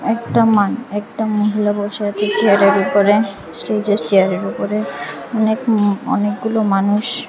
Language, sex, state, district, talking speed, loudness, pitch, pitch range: Bengali, female, Tripura, West Tripura, 105 wpm, -16 LUFS, 205 Hz, 200-220 Hz